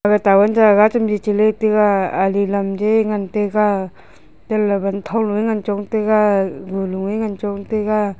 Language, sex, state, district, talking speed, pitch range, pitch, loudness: Wancho, female, Arunachal Pradesh, Longding, 140 wpm, 200-215 Hz, 210 Hz, -17 LUFS